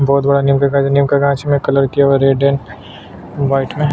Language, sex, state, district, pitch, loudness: Hindi, male, Chhattisgarh, Sukma, 140 Hz, -14 LUFS